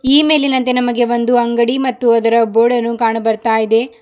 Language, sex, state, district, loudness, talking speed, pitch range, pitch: Kannada, female, Karnataka, Bidar, -13 LUFS, 180 wpm, 230-250 Hz, 240 Hz